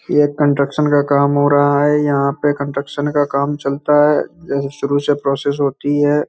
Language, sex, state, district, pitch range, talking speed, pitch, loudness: Hindi, male, Uttar Pradesh, Hamirpur, 140-145 Hz, 180 wpm, 145 Hz, -16 LUFS